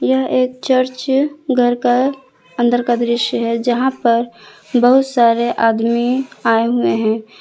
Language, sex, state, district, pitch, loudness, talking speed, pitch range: Hindi, female, Jharkhand, Palamu, 240 Hz, -16 LUFS, 140 wpm, 225-255 Hz